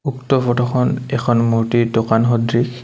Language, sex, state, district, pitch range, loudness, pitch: Assamese, male, Assam, Kamrup Metropolitan, 115-125 Hz, -17 LUFS, 120 Hz